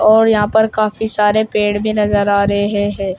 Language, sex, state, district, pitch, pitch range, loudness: Hindi, male, Uttar Pradesh, Shamli, 210 Hz, 205-220 Hz, -14 LUFS